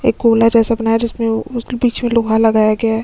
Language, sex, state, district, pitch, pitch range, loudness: Hindi, female, Chhattisgarh, Sukma, 230 Hz, 225-235 Hz, -15 LUFS